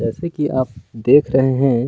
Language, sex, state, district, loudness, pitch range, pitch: Hindi, male, Chhattisgarh, Kabirdham, -17 LUFS, 115-145 Hz, 130 Hz